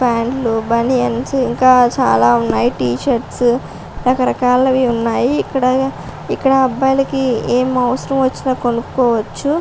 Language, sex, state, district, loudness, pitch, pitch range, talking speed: Telugu, female, Andhra Pradesh, Visakhapatnam, -15 LUFS, 250 Hz, 235-260 Hz, 95 wpm